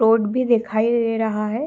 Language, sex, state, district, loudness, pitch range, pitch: Hindi, female, Bihar, Saharsa, -20 LUFS, 220-235 Hz, 225 Hz